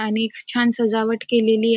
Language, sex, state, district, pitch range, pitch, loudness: Marathi, female, Maharashtra, Nagpur, 225-235 Hz, 225 Hz, -20 LUFS